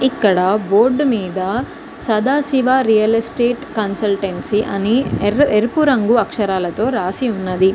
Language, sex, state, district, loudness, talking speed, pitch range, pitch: Telugu, female, Telangana, Mahabubabad, -16 LUFS, 100 wpm, 195-250 Hz, 220 Hz